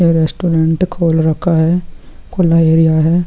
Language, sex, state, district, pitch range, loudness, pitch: Hindi, male, Chhattisgarh, Sukma, 160-175 Hz, -13 LUFS, 165 Hz